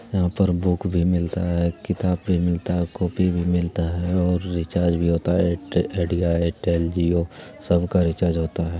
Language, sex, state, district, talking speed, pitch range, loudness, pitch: Hindi, male, Bihar, Jamui, 170 wpm, 85-90 Hz, -22 LUFS, 85 Hz